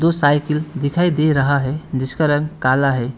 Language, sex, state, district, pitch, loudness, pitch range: Hindi, male, West Bengal, Alipurduar, 145 Hz, -18 LUFS, 135-155 Hz